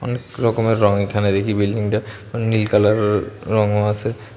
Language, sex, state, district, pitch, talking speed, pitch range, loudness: Bengali, male, Tripura, West Tripura, 105 Hz, 135 wpm, 105-110 Hz, -19 LUFS